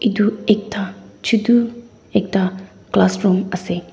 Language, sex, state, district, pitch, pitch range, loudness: Nagamese, female, Nagaland, Dimapur, 200 Hz, 185-225 Hz, -18 LUFS